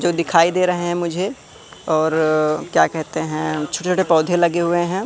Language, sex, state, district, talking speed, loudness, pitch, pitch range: Hindi, male, Madhya Pradesh, Katni, 190 wpm, -18 LUFS, 170 Hz, 155-175 Hz